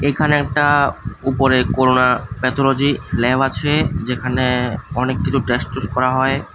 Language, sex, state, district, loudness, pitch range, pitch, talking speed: Bengali, male, Tripura, West Tripura, -17 LUFS, 125-140 Hz, 130 Hz, 130 wpm